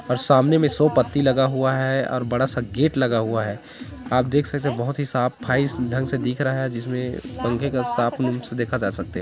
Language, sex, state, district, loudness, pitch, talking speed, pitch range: Hindi, male, Chhattisgarh, Korba, -22 LUFS, 130 Hz, 235 wpm, 125-135 Hz